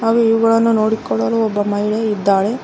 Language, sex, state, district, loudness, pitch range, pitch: Kannada, female, Karnataka, Koppal, -16 LUFS, 205-225 Hz, 220 Hz